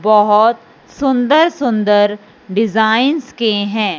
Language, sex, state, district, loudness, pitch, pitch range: Hindi, male, Punjab, Fazilka, -14 LUFS, 220 Hz, 210-250 Hz